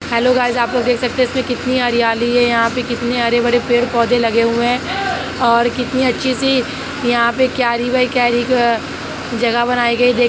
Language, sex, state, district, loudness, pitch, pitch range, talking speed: Hindi, female, Uttar Pradesh, Jalaun, -15 LUFS, 245 Hz, 235-255 Hz, 190 wpm